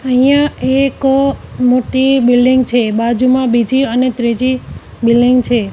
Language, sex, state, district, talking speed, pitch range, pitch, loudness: Gujarati, female, Gujarat, Gandhinagar, 115 wpm, 240-265 Hz, 255 Hz, -12 LUFS